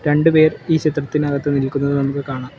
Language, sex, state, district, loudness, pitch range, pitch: Malayalam, male, Kerala, Kollam, -17 LUFS, 140-150 Hz, 145 Hz